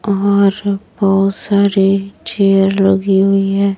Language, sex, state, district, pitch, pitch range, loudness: Hindi, female, Chhattisgarh, Raipur, 195 Hz, 195-200 Hz, -13 LUFS